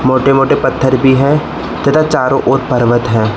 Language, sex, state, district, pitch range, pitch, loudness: Hindi, male, Arunachal Pradesh, Lower Dibang Valley, 125-135 Hz, 130 Hz, -11 LUFS